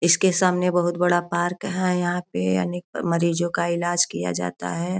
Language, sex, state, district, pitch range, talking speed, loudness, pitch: Hindi, female, Uttar Pradesh, Gorakhpur, 165-180 Hz, 190 wpm, -23 LUFS, 175 Hz